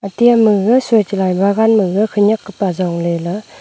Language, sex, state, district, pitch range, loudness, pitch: Wancho, female, Arunachal Pradesh, Longding, 190-220 Hz, -14 LUFS, 205 Hz